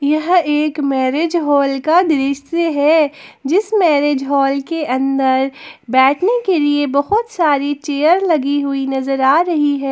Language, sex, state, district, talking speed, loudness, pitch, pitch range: Hindi, female, Jharkhand, Palamu, 145 wpm, -15 LUFS, 290 Hz, 275-325 Hz